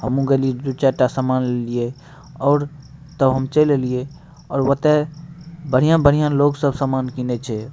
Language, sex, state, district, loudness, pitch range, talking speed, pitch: Maithili, male, Bihar, Madhepura, -19 LUFS, 130-150 Hz, 145 wpm, 135 Hz